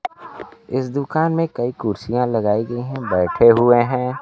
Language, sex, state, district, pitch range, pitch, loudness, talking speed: Hindi, male, Bihar, Kaimur, 115-135 Hz, 120 Hz, -18 LUFS, 155 wpm